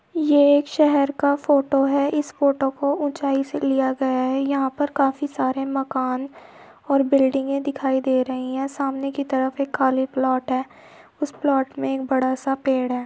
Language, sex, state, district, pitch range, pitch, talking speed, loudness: Hindi, female, Uttar Pradesh, Muzaffarnagar, 265-285 Hz, 275 Hz, 190 wpm, -21 LUFS